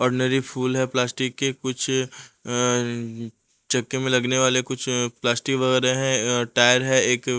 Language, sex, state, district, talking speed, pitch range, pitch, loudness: Hindi, male, Punjab, Pathankot, 160 wpm, 120-130 Hz, 125 Hz, -22 LUFS